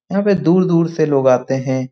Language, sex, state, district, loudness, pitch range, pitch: Hindi, male, Bihar, Lakhisarai, -15 LUFS, 130-175 Hz, 155 Hz